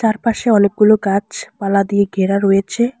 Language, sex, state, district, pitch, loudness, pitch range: Bengali, female, West Bengal, Alipurduar, 200 Hz, -15 LUFS, 195-220 Hz